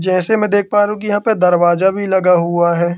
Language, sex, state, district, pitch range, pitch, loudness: Hindi, male, Madhya Pradesh, Katni, 175-205 Hz, 190 Hz, -14 LUFS